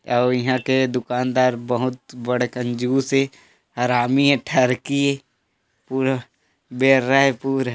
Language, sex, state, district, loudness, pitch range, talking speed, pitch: Chhattisgarhi, male, Chhattisgarh, Korba, -20 LUFS, 125-135 Hz, 125 wpm, 130 Hz